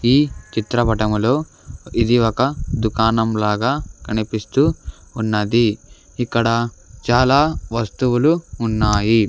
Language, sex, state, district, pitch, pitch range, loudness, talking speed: Telugu, male, Andhra Pradesh, Sri Satya Sai, 115 Hz, 110-120 Hz, -18 LUFS, 75 wpm